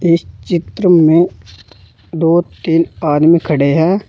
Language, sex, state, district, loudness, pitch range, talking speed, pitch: Hindi, male, Uttar Pradesh, Saharanpur, -13 LUFS, 140-170 Hz, 115 wpm, 165 Hz